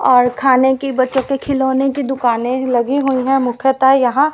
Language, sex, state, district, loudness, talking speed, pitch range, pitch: Hindi, female, Haryana, Rohtak, -15 LUFS, 180 wpm, 255-270 Hz, 265 Hz